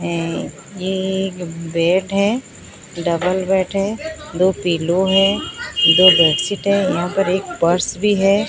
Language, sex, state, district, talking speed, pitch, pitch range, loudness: Hindi, female, Odisha, Sambalpur, 135 wpm, 185 Hz, 170-195 Hz, -17 LUFS